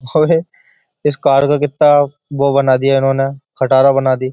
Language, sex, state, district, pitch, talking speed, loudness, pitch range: Hindi, male, Uttar Pradesh, Jyotiba Phule Nagar, 140 Hz, 165 wpm, -13 LUFS, 135-150 Hz